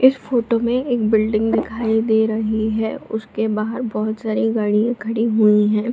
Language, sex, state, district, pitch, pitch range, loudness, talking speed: Hindi, female, Bihar, Supaul, 220 Hz, 215-230 Hz, -19 LUFS, 170 wpm